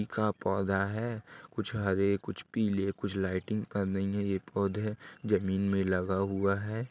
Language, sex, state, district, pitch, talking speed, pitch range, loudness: Hindi, male, Uttar Pradesh, Ghazipur, 100 Hz, 175 wpm, 95-105 Hz, -32 LUFS